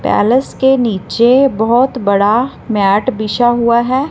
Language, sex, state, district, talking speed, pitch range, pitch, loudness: Hindi, female, Punjab, Fazilka, 115 wpm, 215-260 Hz, 235 Hz, -12 LUFS